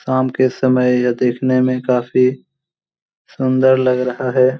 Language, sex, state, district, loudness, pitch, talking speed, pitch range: Hindi, male, Jharkhand, Jamtara, -16 LUFS, 130 Hz, 145 wpm, 125-130 Hz